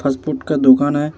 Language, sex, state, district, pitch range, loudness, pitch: Hindi, male, Bihar, Vaishali, 135-150 Hz, -15 LUFS, 145 Hz